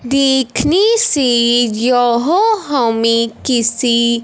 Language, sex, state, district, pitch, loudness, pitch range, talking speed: Hindi, male, Punjab, Fazilka, 245 Hz, -13 LUFS, 235-285 Hz, 70 wpm